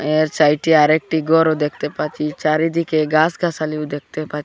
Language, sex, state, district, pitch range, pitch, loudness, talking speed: Bengali, male, Assam, Hailakandi, 150-160 Hz, 155 Hz, -18 LUFS, 135 wpm